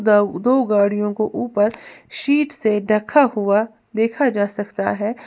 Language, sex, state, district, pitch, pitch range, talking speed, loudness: Hindi, female, Uttar Pradesh, Lalitpur, 215 Hz, 205-245 Hz, 150 wpm, -19 LUFS